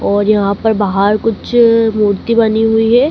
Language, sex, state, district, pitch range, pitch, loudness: Hindi, female, Madhya Pradesh, Dhar, 205-230 Hz, 220 Hz, -12 LUFS